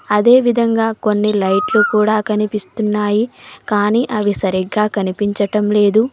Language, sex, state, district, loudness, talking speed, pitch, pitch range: Telugu, female, Telangana, Mahabubabad, -15 LUFS, 105 wpm, 210 Hz, 205-225 Hz